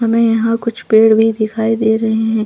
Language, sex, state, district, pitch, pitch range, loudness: Hindi, female, Chhattisgarh, Bastar, 225 Hz, 220-230 Hz, -13 LUFS